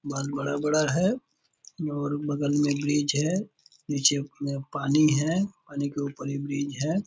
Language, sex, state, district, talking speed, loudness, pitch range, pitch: Hindi, male, Bihar, Purnia, 155 wpm, -27 LUFS, 140-155 Hz, 145 Hz